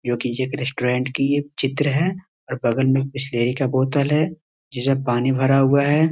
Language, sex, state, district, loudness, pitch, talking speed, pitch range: Hindi, male, Bihar, East Champaran, -20 LUFS, 135 Hz, 195 wpm, 130-145 Hz